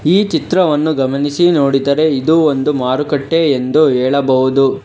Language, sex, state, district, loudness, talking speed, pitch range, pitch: Kannada, male, Karnataka, Bangalore, -13 LUFS, 110 wpm, 135-155 Hz, 145 Hz